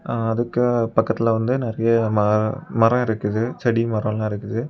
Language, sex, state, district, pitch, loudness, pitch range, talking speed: Tamil, male, Tamil Nadu, Kanyakumari, 115 Hz, -21 LUFS, 110-120 Hz, 140 wpm